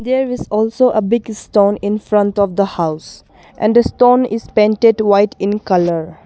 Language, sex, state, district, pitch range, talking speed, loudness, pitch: English, female, Arunachal Pradesh, Longding, 200-230 Hz, 170 wpm, -14 LUFS, 210 Hz